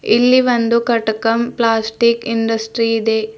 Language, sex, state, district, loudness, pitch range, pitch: Kannada, female, Karnataka, Bidar, -15 LUFS, 225-235 Hz, 230 Hz